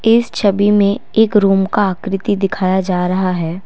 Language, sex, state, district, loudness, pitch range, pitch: Hindi, female, Assam, Kamrup Metropolitan, -15 LUFS, 185-210 Hz, 195 Hz